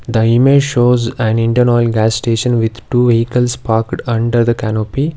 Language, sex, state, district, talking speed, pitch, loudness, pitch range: English, male, Karnataka, Bangalore, 175 wpm, 120 Hz, -13 LUFS, 115-125 Hz